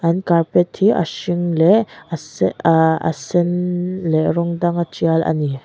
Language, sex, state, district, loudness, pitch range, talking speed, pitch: Mizo, female, Mizoram, Aizawl, -17 LUFS, 160-175 Hz, 170 wpm, 170 Hz